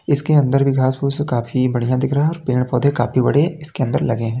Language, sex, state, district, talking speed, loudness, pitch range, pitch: Hindi, male, Uttar Pradesh, Lalitpur, 230 wpm, -18 LUFS, 125-145 Hz, 135 Hz